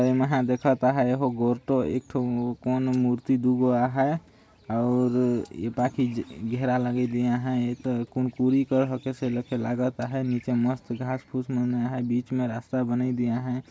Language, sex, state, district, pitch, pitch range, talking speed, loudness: Sadri, male, Chhattisgarh, Jashpur, 125 Hz, 120-130 Hz, 155 wpm, -26 LUFS